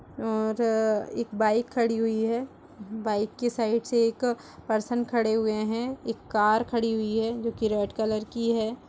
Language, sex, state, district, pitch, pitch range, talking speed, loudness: Hindi, female, Chhattisgarh, Kabirdham, 225 Hz, 220-235 Hz, 175 wpm, -27 LUFS